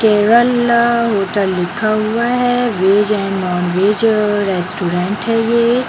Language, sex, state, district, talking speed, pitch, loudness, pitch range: Hindi, female, Bihar, Jamui, 130 wpm, 210 Hz, -14 LUFS, 195-235 Hz